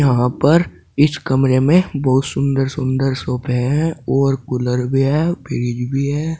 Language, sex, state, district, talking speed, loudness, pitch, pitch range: Hindi, male, Uttar Pradesh, Saharanpur, 160 wpm, -17 LUFS, 135 Hz, 130-150 Hz